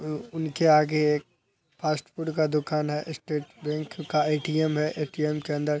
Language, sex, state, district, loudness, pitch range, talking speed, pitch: Hindi, male, Bihar, Araria, -27 LUFS, 150-155 Hz, 185 wpm, 150 Hz